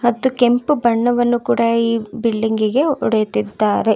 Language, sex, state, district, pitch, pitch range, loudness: Kannada, female, Karnataka, Bangalore, 230 Hz, 220-245 Hz, -17 LUFS